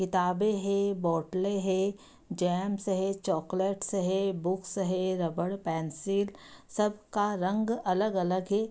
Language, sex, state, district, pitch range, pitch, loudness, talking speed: Hindi, female, Bihar, Madhepura, 185-200 Hz, 195 Hz, -30 LUFS, 115 wpm